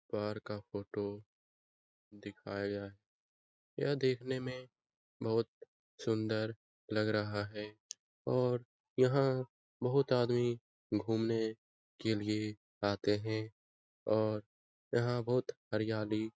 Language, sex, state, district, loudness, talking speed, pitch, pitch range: Hindi, male, Bihar, Lakhisarai, -36 LUFS, 95 wpm, 110 Hz, 105-120 Hz